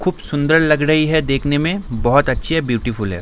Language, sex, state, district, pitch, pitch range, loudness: Hindi, male, Bihar, Darbhanga, 145 Hz, 120-160 Hz, -16 LUFS